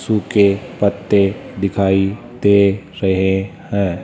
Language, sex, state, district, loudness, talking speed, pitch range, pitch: Hindi, male, Rajasthan, Jaipur, -17 LUFS, 90 wpm, 95-100 Hz, 100 Hz